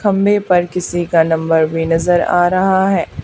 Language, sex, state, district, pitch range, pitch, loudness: Hindi, female, Haryana, Charkhi Dadri, 165-190 Hz, 175 Hz, -14 LUFS